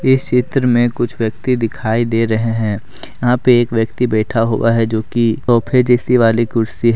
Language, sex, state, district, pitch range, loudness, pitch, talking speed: Hindi, male, Jharkhand, Deoghar, 115-125 Hz, -15 LUFS, 115 Hz, 190 wpm